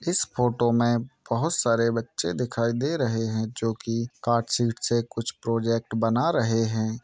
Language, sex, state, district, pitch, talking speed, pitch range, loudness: Hindi, male, Bihar, East Champaran, 115 Hz, 170 wpm, 115-120 Hz, -25 LUFS